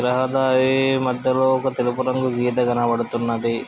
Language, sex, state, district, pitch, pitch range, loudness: Telugu, male, Andhra Pradesh, Krishna, 130 Hz, 120-130 Hz, -20 LUFS